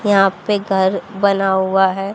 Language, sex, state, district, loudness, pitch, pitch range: Hindi, female, Haryana, Jhajjar, -16 LUFS, 195 Hz, 190-200 Hz